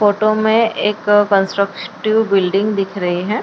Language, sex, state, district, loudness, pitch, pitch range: Hindi, female, Maharashtra, Chandrapur, -16 LUFS, 205 Hz, 195-215 Hz